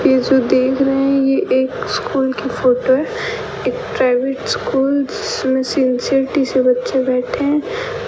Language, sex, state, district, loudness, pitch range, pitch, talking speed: Hindi, female, Rajasthan, Bikaner, -16 LUFS, 260-280 Hz, 270 Hz, 150 wpm